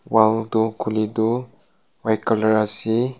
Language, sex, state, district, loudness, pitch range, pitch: Nagamese, male, Nagaland, Kohima, -21 LUFS, 110-115 Hz, 110 Hz